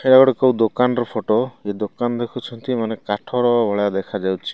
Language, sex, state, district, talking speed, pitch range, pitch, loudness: Odia, male, Odisha, Malkangiri, 160 wpm, 105-125 Hz, 120 Hz, -20 LUFS